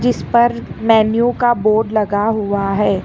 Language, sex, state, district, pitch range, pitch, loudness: Hindi, female, Karnataka, Bangalore, 205-235 Hz, 220 Hz, -15 LUFS